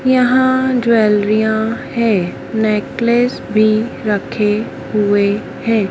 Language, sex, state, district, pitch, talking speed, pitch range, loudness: Hindi, female, Madhya Pradesh, Dhar, 220 Hz, 80 wpm, 210-235 Hz, -15 LUFS